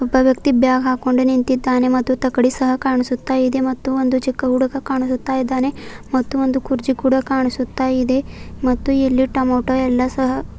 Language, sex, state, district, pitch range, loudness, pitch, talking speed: Kannada, female, Karnataka, Bidar, 255-265 Hz, -18 LUFS, 260 Hz, 160 wpm